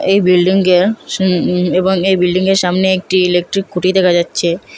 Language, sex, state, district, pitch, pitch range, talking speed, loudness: Bengali, female, Assam, Hailakandi, 185 Hz, 180-190 Hz, 150 wpm, -13 LUFS